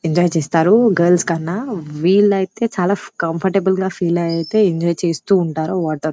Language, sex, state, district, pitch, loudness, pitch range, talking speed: Telugu, female, Telangana, Karimnagar, 175 Hz, -17 LUFS, 165-195 Hz, 145 wpm